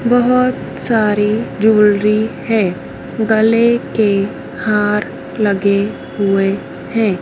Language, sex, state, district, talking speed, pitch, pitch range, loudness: Hindi, female, Madhya Pradesh, Dhar, 85 wpm, 215 Hz, 200-225 Hz, -15 LUFS